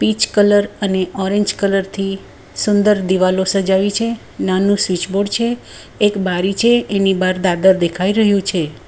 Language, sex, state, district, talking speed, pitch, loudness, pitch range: Gujarati, female, Gujarat, Valsad, 155 wpm, 195 Hz, -16 LUFS, 185-205 Hz